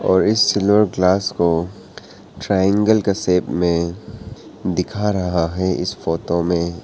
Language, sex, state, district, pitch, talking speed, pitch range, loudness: Hindi, male, Arunachal Pradesh, Papum Pare, 90 Hz, 130 wpm, 85-105 Hz, -18 LUFS